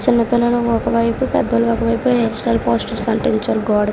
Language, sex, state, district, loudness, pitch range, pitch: Telugu, female, Andhra Pradesh, Srikakulam, -17 LUFS, 210-235 Hz, 230 Hz